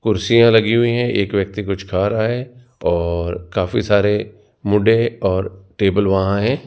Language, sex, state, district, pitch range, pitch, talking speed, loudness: Hindi, male, Rajasthan, Jaipur, 95-115 Hz, 105 Hz, 160 wpm, -17 LUFS